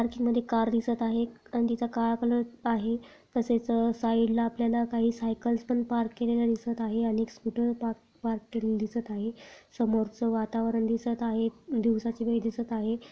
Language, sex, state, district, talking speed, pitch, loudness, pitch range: Marathi, female, Maharashtra, Chandrapur, 175 wpm, 230 Hz, -29 LUFS, 225-235 Hz